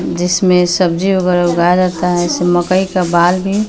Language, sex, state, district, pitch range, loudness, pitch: Hindi, female, Bihar, West Champaran, 175-185 Hz, -13 LUFS, 180 Hz